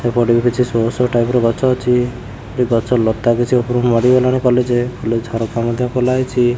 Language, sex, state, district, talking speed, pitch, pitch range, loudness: Odia, male, Odisha, Khordha, 190 wpm, 120 Hz, 115-125 Hz, -16 LUFS